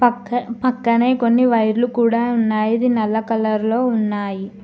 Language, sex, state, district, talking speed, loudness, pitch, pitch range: Telugu, female, Telangana, Mahabubabad, 140 wpm, -18 LUFS, 235 Hz, 220-245 Hz